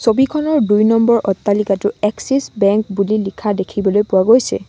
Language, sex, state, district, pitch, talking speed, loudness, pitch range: Assamese, female, Assam, Sonitpur, 210 Hz, 140 wpm, -15 LUFS, 200-235 Hz